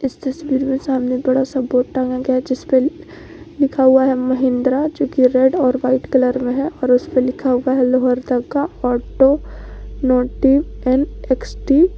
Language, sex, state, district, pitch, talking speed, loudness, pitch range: Hindi, female, Jharkhand, Garhwa, 260 Hz, 180 wpm, -17 LUFS, 255-275 Hz